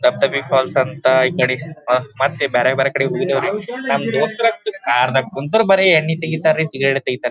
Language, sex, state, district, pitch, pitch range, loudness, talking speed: Kannada, male, Karnataka, Gulbarga, 140 Hz, 130-190 Hz, -17 LUFS, 190 wpm